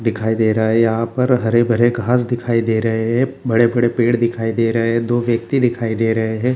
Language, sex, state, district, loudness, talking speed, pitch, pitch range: Hindi, male, Bihar, Jamui, -17 LUFS, 220 wpm, 115 Hz, 115-120 Hz